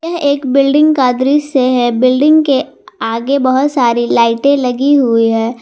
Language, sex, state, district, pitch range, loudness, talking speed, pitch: Hindi, female, Jharkhand, Garhwa, 240-285 Hz, -12 LUFS, 160 wpm, 260 Hz